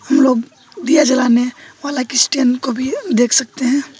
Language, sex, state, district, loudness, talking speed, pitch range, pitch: Hindi, male, West Bengal, Alipurduar, -15 LUFS, 150 wpm, 250-285 Hz, 260 Hz